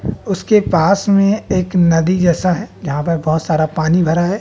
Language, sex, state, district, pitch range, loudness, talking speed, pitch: Hindi, male, Bihar, West Champaran, 160-195 Hz, -15 LUFS, 190 wpm, 175 Hz